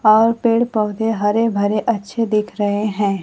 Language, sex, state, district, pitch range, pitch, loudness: Hindi, female, Bihar, Kaimur, 205-230 Hz, 215 Hz, -18 LUFS